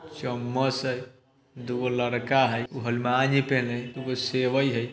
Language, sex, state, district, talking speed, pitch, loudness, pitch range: Bajjika, male, Bihar, Vaishali, 145 wpm, 130 Hz, -26 LUFS, 125-135 Hz